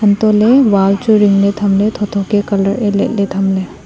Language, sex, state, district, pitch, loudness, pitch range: Wancho, female, Arunachal Pradesh, Longding, 205 Hz, -12 LUFS, 200-210 Hz